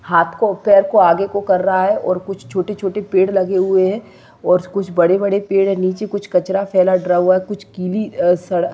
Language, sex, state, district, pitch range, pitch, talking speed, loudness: Hindi, female, Maharashtra, Sindhudurg, 180-200 Hz, 190 Hz, 225 wpm, -16 LUFS